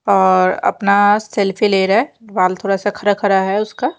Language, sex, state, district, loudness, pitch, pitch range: Hindi, female, Chandigarh, Chandigarh, -15 LUFS, 200 Hz, 195-210 Hz